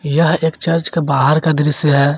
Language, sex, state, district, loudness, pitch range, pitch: Hindi, male, Jharkhand, Garhwa, -14 LUFS, 145-165 Hz, 155 Hz